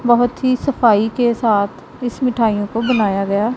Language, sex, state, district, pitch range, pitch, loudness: Hindi, female, Punjab, Pathankot, 210-245 Hz, 235 Hz, -17 LUFS